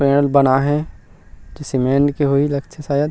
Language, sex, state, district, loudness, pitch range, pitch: Chhattisgarhi, male, Chhattisgarh, Rajnandgaon, -17 LUFS, 130-145 Hz, 140 Hz